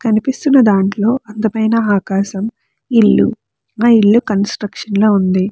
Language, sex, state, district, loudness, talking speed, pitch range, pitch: Telugu, female, Andhra Pradesh, Chittoor, -14 LUFS, 110 wpm, 200-230 Hz, 215 Hz